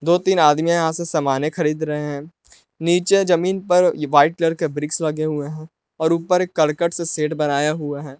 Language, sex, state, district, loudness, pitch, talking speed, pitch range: Hindi, male, Jharkhand, Palamu, -19 LUFS, 160 Hz, 205 wpm, 150-170 Hz